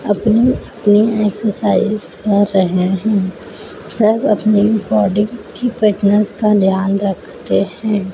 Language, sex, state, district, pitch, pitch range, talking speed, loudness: Hindi, female, Madhya Pradesh, Dhar, 210 Hz, 200-215 Hz, 105 wpm, -15 LUFS